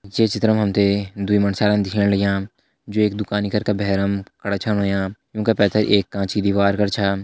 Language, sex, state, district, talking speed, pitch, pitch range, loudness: Hindi, male, Uttarakhand, Tehri Garhwal, 225 wpm, 100 Hz, 100-105 Hz, -20 LUFS